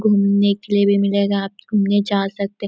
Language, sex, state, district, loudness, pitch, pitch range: Hindi, female, Chhattisgarh, Korba, -18 LUFS, 200 Hz, 200-205 Hz